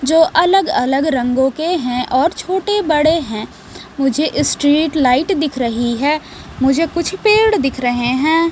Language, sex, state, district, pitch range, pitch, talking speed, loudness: Hindi, female, Bihar, West Champaran, 260-335 Hz, 300 Hz, 140 wpm, -15 LUFS